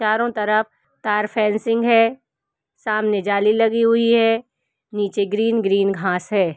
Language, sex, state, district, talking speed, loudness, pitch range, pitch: Hindi, female, Uttar Pradesh, Varanasi, 135 wpm, -19 LUFS, 205-230 Hz, 215 Hz